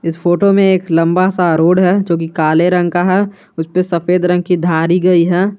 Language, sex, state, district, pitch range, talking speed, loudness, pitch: Hindi, male, Jharkhand, Garhwa, 170-185 Hz, 235 wpm, -13 LUFS, 180 Hz